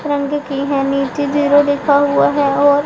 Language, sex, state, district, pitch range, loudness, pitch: Hindi, female, Punjab, Pathankot, 275-290 Hz, -15 LUFS, 285 Hz